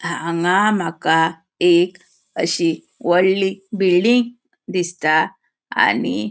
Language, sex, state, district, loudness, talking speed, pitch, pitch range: Konkani, female, Goa, North and South Goa, -18 LUFS, 95 wpm, 180 Hz, 170-195 Hz